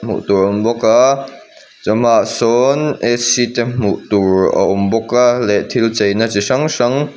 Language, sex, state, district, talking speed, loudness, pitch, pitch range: Mizo, male, Mizoram, Aizawl, 160 wpm, -14 LUFS, 120 Hz, 100-125 Hz